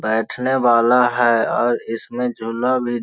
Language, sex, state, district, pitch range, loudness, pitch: Hindi, male, Bihar, Jahanabad, 115-125 Hz, -18 LUFS, 120 Hz